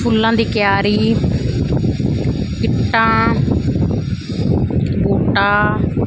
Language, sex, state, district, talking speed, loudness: Punjabi, female, Punjab, Fazilka, 50 wpm, -16 LUFS